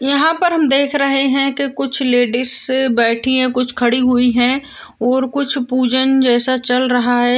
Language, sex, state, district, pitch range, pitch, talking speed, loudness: Hindi, female, Chhattisgarh, Kabirdham, 245-275 Hz, 260 Hz, 170 wpm, -15 LUFS